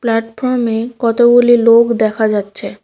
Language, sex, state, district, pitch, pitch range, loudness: Bengali, female, West Bengal, Cooch Behar, 230 Hz, 220-240 Hz, -12 LUFS